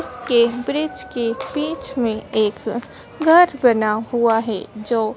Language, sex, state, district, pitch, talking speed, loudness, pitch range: Hindi, female, Madhya Pradesh, Dhar, 240 Hz, 140 wpm, -19 LUFS, 225-270 Hz